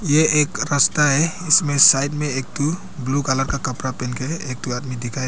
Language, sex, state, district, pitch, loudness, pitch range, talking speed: Hindi, male, Arunachal Pradesh, Papum Pare, 140 Hz, -19 LUFS, 130-150 Hz, 215 wpm